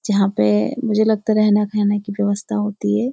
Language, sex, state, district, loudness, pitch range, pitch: Hindi, female, Uttarakhand, Uttarkashi, -18 LUFS, 205-215 Hz, 210 Hz